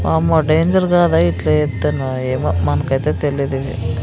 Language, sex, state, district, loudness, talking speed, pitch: Telugu, female, Andhra Pradesh, Sri Satya Sai, -16 LUFS, 120 wpm, 130 Hz